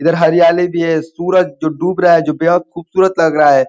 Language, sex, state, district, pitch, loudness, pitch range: Hindi, male, Uttar Pradesh, Ghazipur, 170 Hz, -13 LUFS, 160-175 Hz